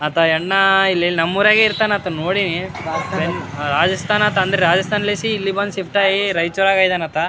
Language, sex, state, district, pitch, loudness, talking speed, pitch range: Kannada, male, Karnataka, Raichur, 190 Hz, -16 LUFS, 125 wpm, 170-200 Hz